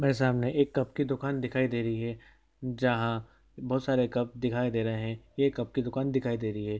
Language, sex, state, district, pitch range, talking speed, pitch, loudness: Hindi, male, Chhattisgarh, Sukma, 115-130 Hz, 240 wpm, 125 Hz, -30 LUFS